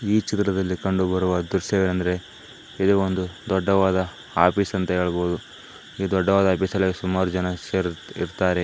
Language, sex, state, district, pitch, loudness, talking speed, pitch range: Kannada, male, Karnataka, Dakshina Kannada, 95 Hz, -23 LUFS, 120 wpm, 90-95 Hz